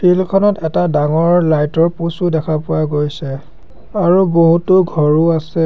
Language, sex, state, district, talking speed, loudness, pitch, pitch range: Assamese, male, Assam, Sonitpur, 160 wpm, -14 LUFS, 165 Hz, 155-175 Hz